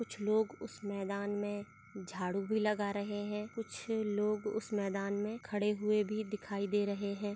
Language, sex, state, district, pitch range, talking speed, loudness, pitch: Hindi, female, Chhattisgarh, Balrampur, 200-210 Hz, 180 wpm, -36 LUFS, 205 Hz